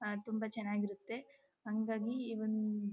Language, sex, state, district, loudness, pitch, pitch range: Kannada, female, Karnataka, Chamarajanagar, -39 LUFS, 220 Hz, 210-230 Hz